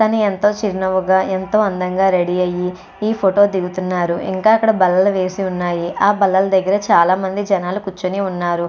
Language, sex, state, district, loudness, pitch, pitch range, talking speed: Telugu, female, Andhra Pradesh, Chittoor, -16 LUFS, 190 Hz, 180-200 Hz, 160 wpm